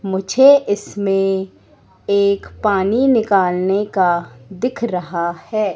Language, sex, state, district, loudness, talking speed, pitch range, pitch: Hindi, female, Madhya Pradesh, Katni, -17 LUFS, 95 wpm, 180-210 Hz, 195 Hz